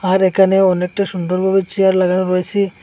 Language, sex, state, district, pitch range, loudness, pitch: Bengali, male, Assam, Hailakandi, 180-195 Hz, -15 LUFS, 190 Hz